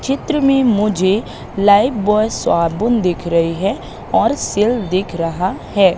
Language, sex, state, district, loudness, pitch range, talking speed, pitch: Hindi, female, Madhya Pradesh, Katni, -16 LUFS, 185-230 Hz, 130 wpm, 200 Hz